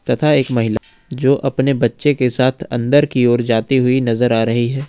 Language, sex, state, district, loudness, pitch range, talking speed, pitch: Hindi, male, Jharkhand, Ranchi, -16 LUFS, 120-135 Hz, 210 wpm, 130 Hz